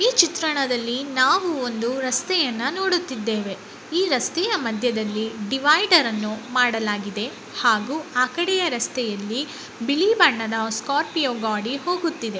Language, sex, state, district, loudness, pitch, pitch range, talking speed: Kannada, male, Karnataka, Bellary, -22 LUFS, 255 Hz, 225-320 Hz, 95 wpm